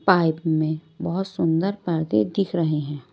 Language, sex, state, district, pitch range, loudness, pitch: Hindi, female, Maharashtra, Washim, 155-185 Hz, -23 LUFS, 165 Hz